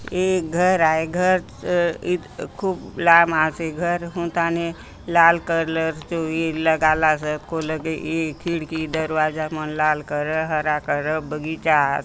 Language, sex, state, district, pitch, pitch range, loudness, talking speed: Halbi, female, Chhattisgarh, Bastar, 160 Hz, 155-170 Hz, -21 LUFS, 130 wpm